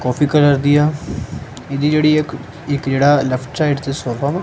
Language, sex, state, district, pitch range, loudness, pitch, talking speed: Punjabi, male, Punjab, Kapurthala, 135-150 Hz, -16 LUFS, 145 Hz, 160 wpm